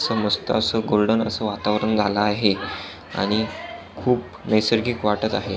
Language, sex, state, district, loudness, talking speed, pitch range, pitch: Marathi, male, Maharashtra, Pune, -22 LUFS, 140 wpm, 105-110 Hz, 105 Hz